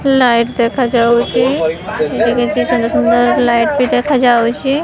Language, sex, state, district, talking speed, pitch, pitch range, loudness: Odia, male, Odisha, Khordha, 110 wpm, 240 Hz, 230-255 Hz, -13 LUFS